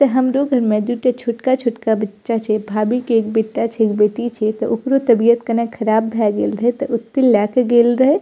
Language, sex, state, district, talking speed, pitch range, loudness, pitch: Maithili, female, Bihar, Purnia, 235 wpm, 220-250 Hz, -17 LUFS, 235 Hz